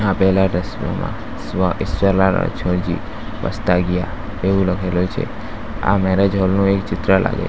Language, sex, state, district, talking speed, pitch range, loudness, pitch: Gujarati, male, Gujarat, Valsad, 135 wpm, 90-100 Hz, -19 LUFS, 95 Hz